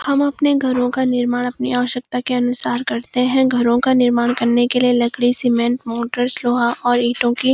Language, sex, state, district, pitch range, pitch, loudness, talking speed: Hindi, female, Uttarakhand, Uttarkashi, 240-255 Hz, 245 Hz, -17 LUFS, 200 wpm